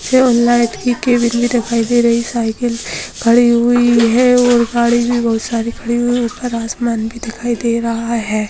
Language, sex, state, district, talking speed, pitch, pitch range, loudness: Hindi, female, Bihar, Sitamarhi, 190 wpm, 235 Hz, 230-240 Hz, -14 LUFS